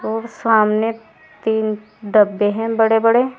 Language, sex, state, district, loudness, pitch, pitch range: Hindi, female, Uttar Pradesh, Saharanpur, -17 LUFS, 220 Hz, 215-225 Hz